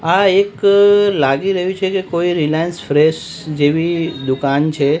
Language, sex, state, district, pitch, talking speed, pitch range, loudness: Gujarati, male, Gujarat, Gandhinagar, 165 Hz, 145 wpm, 150-190 Hz, -15 LUFS